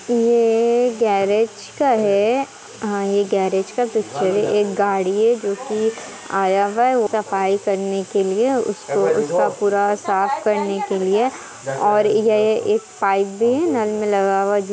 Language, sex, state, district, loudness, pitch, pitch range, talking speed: Hindi, female, Bihar, Muzaffarpur, -19 LUFS, 210 Hz, 200-230 Hz, 155 wpm